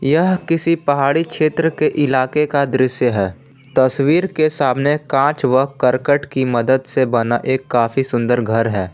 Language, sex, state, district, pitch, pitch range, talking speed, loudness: Hindi, male, Jharkhand, Palamu, 135 Hz, 125-150 Hz, 160 wpm, -16 LUFS